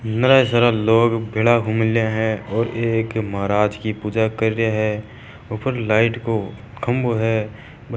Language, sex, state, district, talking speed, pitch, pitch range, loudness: Marwari, male, Rajasthan, Churu, 160 wpm, 110 Hz, 110-115 Hz, -19 LUFS